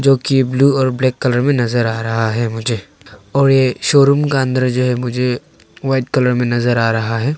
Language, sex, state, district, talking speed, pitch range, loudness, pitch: Hindi, male, Arunachal Pradesh, Longding, 220 wpm, 120-135 Hz, -15 LUFS, 125 Hz